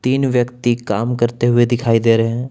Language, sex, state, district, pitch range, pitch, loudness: Hindi, male, Jharkhand, Palamu, 115-125 Hz, 120 Hz, -16 LUFS